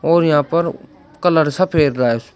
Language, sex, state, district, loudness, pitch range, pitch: Hindi, male, Uttar Pradesh, Shamli, -16 LUFS, 145-170 Hz, 160 Hz